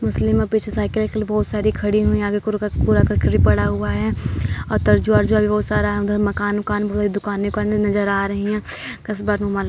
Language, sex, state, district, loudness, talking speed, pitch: Hindi, male, Uttar Pradesh, Muzaffarnagar, -19 LUFS, 200 wpm, 200 Hz